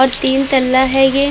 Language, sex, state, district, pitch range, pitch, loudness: Hindi, female, Uttar Pradesh, Varanasi, 265-270 Hz, 265 Hz, -13 LUFS